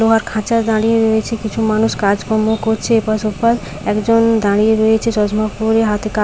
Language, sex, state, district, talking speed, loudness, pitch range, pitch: Bengali, female, West Bengal, Paschim Medinipur, 165 wpm, -15 LUFS, 215-225 Hz, 220 Hz